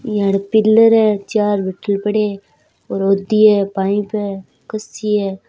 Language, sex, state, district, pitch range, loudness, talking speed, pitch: Hindi, female, Rajasthan, Churu, 195-215 Hz, -16 LUFS, 155 wpm, 205 Hz